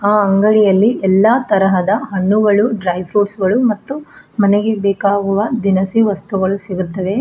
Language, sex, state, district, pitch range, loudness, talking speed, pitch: Kannada, female, Karnataka, Bidar, 195-215 Hz, -14 LUFS, 115 wpm, 205 Hz